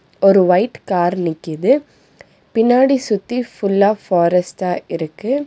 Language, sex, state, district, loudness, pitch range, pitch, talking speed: Tamil, female, Tamil Nadu, Nilgiris, -16 LUFS, 180-240 Hz, 195 Hz, 100 wpm